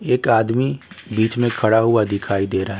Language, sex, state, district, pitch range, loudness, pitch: Hindi, male, Bihar, West Champaran, 100-120 Hz, -18 LUFS, 110 Hz